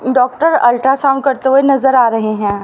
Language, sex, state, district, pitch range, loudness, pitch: Hindi, female, Haryana, Rohtak, 240-275 Hz, -12 LUFS, 265 Hz